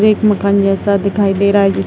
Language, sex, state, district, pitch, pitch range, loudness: Hindi, female, Uttar Pradesh, Etah, 200 Hz, 195-205 Hz, -13 LUFS